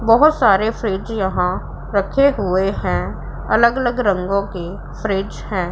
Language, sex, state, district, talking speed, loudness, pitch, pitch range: Hindi, female, Punjab, Pathankot, 135 wpm, -18 LUFS, 200 Hz, 190-230 Hz